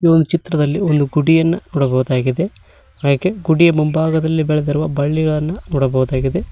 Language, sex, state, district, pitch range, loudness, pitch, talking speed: Kannada, male, Karnataka, Koppal, 145-165 Hz, -16 LUFS, 155 Hz, 110 wpm